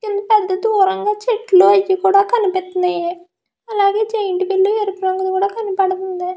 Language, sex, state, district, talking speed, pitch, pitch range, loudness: Telugu, female, Andhra Pradesh, Krishna, 95 wpm, 390 Hz, 375-420 Hz, -16 LUFS